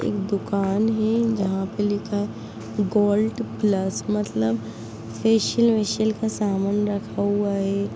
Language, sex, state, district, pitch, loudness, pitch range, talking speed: Hindi, female, Bihar, Muzaffarpur, 205 Hz, -23 LUFS, 195-215 Hz, 130 wpm